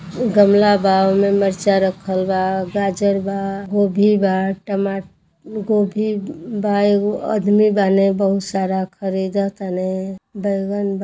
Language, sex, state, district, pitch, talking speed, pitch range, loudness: Bhojpuri, female, Uttar Pradesh, Gorakhpur, 195 Hz, 120 wpm, 190-205 Hz, -18 LUFS